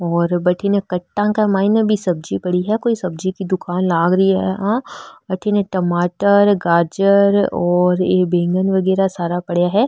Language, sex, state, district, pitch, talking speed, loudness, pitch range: Marwari, female, Rajasthan, Nagaur, 185 Hz, 165 wpm, -17 LUFS, 175-200 Hz